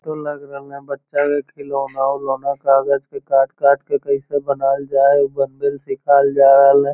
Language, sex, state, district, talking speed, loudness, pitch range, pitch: Magahi, male, Bihar, Lakhisarai, 175 wpm, -17 LUFS, 135-145 Hz, 140 Hz